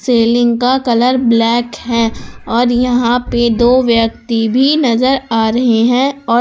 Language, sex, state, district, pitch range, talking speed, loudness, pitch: Hindi, female, Jharkhand, Palamu, 230-250 Hz, 150 wpm, -12 LUFS, 240 Hz